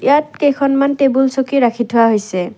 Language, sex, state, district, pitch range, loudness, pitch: Assamese, female, Assam, Kamrup Metropolitan, 230-275 Hz, -14 LUFS, 265 Hz